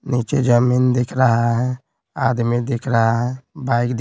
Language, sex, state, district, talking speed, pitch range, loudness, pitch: Hindi, male, Bihar, Patna, 165 wpm, 120-130 Hz, -18 LUFS, 125 Hz